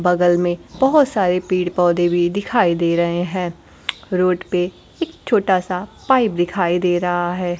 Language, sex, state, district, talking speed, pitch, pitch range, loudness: Hindi, female, Bihar, Kaimur, 165 wpm, 180 Hz, 175-190 Hz, -18 LUFS